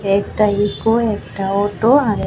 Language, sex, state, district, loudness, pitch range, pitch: Bengali, female, Tripura, West Tripura, -17 LUFS, 200-225 Hz, 205 Hz